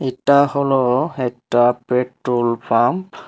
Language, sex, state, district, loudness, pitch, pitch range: Bengali, male, Tripura, Unakoti, -18 LUFS, 125 Hz, 120-140 Hz